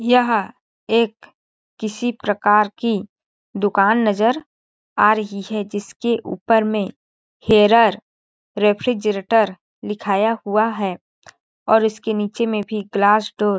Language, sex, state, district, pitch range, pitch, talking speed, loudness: Hindi, female, Chhattisgarh, Balrampur, 205-225 Hz, 215 Hz, 115 wpm, -19 LUFS